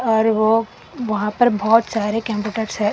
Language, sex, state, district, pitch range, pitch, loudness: Hindi, female, Karnataka, Koppal, 210-225 Hz, 220 Hz, -18 LUFS